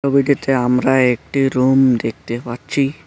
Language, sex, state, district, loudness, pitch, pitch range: Bengali, male, West Bengal, Cooch Behar, -16 LUFS, 130 Hz, 125-140 Hz